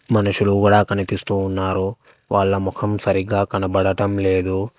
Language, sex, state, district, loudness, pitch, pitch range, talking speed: Telugu, male, Telangana, Hyderabad, -19 LUFS, 100 Hz, 95-100 Hz, 115 wpm